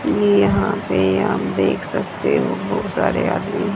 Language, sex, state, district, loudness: Hindi, female, Haryana, Rohtak, -19 LUFS